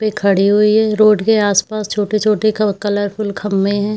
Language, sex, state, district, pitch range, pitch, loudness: Hindi, female, Jharkhand, Jamtara, 205-215 Hz, 210 Hz, -15 LUFS